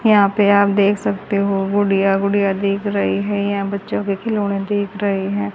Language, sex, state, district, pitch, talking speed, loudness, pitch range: Hindi, female, Haryana, Rohtak, 200 Hz, 195 wpm, -18 LUFS, 195-205 Hz